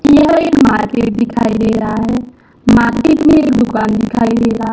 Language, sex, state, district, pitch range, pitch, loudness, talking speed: Hindi, female, Madhya Pradesh, Umaria, 225-275 Hz, 235 Hz, -12 LUFS, 180 wpm